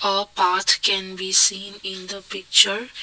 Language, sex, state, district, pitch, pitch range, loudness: English, male, Assam, Kamrup Metropolitan, 195 Hz, 190-200 Hz, -18 LUFS